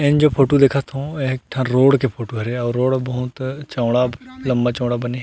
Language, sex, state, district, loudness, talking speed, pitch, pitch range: Chhattisgarhi, male, Chhattisgarh, Rajnandgaon, -19 LUFS, 240 wpm, 130 Hz, 120-135 Hz